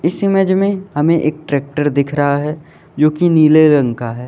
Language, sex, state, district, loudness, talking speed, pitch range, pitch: Hindi, male, Uttar Pradesh, Lalitpur, -14 LUFS, 210 wpm, 145-170 Hz, 155 Hz